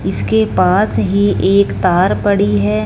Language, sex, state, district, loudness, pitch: Hindi, female, Punjab, Fazilka, -13 LUFS, 180 Hz